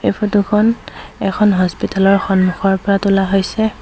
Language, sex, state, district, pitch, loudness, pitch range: Assamese, female, Assam, Sonitpur, 195 Hz, -15 LUFS, 195-210 Hz